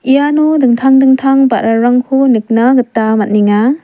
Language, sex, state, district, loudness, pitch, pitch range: Garo, female, Meghalaya, West Garo Hills, -10 LUFS, 255 Hz, 225-270 Hz